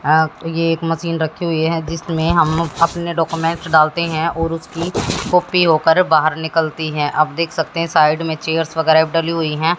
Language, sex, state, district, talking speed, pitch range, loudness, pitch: Hindi, female, Haryana, Jhajjar, 185 wpm, 160-165 Hz, -17 LUFS, 165 Hz